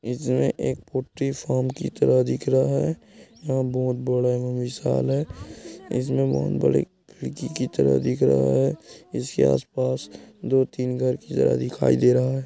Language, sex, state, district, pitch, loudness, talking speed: Hindi, male, Chhattisgarh, Korba, 125 Hz, -23 LUFS, 150 wpm